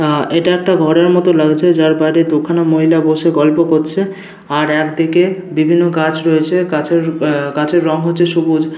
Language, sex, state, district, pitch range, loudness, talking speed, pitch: Bengali, male, West Bengal, Paschim Medinipur, 155-175 Hz, -13 LUFS, 165 wpm, 160 Hz